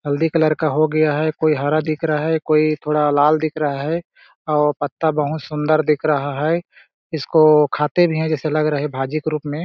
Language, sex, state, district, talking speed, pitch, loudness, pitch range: Hindi, male, Chhattisgarh, Balrampur, 230 wpm, 155 Hz, -18 LUFS, 150-155 Hz